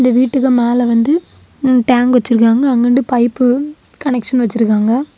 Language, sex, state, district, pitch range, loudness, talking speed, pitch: Tamil, female, Tamil Nadu, Kanyakumari, 235-260 Hz, -13 LUFS, 115 wpm, 245 Hz